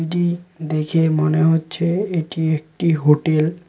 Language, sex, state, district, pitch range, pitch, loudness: Bengali, male, West Bengal, Cooch Behar, 155-170 Hz, 160 Hz, -19 LUFS